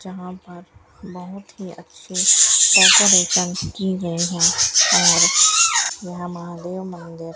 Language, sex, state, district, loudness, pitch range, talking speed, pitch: Hindi, female, Rajasthan, Bikaner, -13 LUFS, 175-190 Hz, 115 wpm, 180 Hz